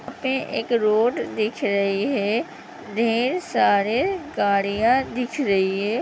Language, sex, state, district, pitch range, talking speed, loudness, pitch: Hindi, female, Uttar Pradesh, Hamirpur, 200-255 Hz, 120 wpm, -22 LUFS, 230 Hz